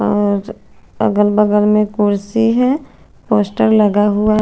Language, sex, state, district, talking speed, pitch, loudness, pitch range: Hindi, female, Chandigarh, Chandigarh, 135 wpm, 210 Hz, -14 LUFS, 205-215 Hz